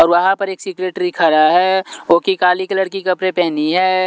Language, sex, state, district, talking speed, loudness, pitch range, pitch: Hindi, male, Punjab, Pathankot, 220 wpm, -15 LUFS, 175-190 Hz, 185 Hz